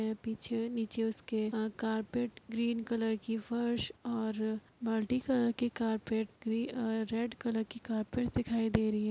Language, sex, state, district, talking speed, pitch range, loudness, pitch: Hindi, female, Uttar Pradesh, Etah, 170 wpm, 220-235 Hz, -35 LUFS, 225 Hz